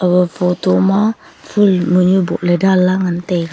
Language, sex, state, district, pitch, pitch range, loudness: Wancho, female, Arunachal Pradesh, Longding, 180 Hz, 180-190 Hz, -14 LUFS